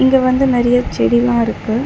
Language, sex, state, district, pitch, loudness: Tamil, female, Tamil Nadu, Chennai, 245 Hz, -14 LUFS